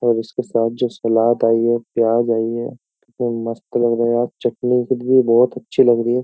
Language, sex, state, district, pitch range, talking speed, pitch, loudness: Hindi, male, Uttar Pradesh, Jyotiba Phule Nagar, 115-125 Hz, 220 wpm, 120 Hz, -18 LUFS